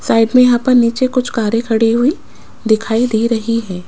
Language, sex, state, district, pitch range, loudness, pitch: Hindi, female, Rajasthan, Jaipur, 225-245 Hz, -14 LUFS, 230 Hz